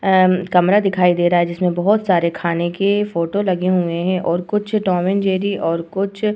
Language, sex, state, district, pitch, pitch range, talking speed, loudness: Hindi, female, Uttar Pradesh, Etah, 185 Hz, 175-200 Hz, 215 wpm, -17 LUFS